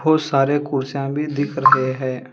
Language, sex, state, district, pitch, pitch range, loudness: Hindi, male, Telangana, Hyderabad, 140 Hz, 135-145 Hz, -19 LUFS